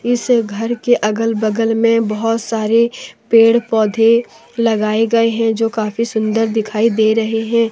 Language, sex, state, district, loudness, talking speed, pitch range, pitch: Hindi, female, Jharkhand, Deoghar, -15 LUFS, 155 wpm, 220-230 Hz, 225 Hz